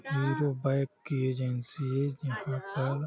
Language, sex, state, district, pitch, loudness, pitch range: Hindi, male, Uttar Pradesh, Hamirpur, 135 Hz, -32 LUFS, 130-140 Hz